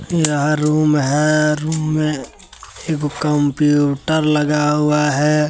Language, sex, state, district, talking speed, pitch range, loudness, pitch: Hindi, male, Jharkhand, Deoghar, 110 wpm, 150-155 Hz, -16 LUFS, 150 Hz